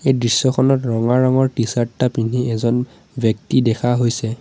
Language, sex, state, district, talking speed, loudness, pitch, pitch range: Assamese, male, Assam, Sonitpur, 135 wpm, -18 LUFS, 120 Hz, 115-130 Hz